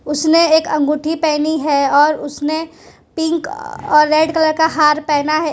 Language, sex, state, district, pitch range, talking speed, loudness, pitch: Hindi, female, Gujarat, Valsad, 300-320 Hz, 160 wpm, -15 LUFS, 310 Hz